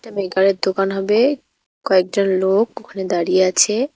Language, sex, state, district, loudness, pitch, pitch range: Bengali, female, West Bengal, Cooch Behar, -17 LUFS, 195 Hz, 190-220 Hz